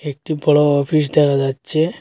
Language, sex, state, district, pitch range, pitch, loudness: Bengali, male, Assam, Hailakandi, 140-155 Hz, 150 Hz, -16 LUFS